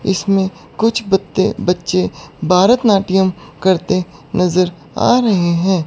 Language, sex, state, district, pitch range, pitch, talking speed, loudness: Hindi, female, Chandigarh, Chandigarh, 180-195 Hz, 185 Hz, 100 wpm, -15 LUFS